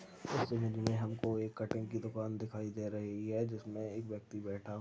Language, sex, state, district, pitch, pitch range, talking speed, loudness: Hindi, male, Chhattisgarh, Rajnandgaon, 110 Hz, 105-115 Hz, 175 wpm, -40 LUFS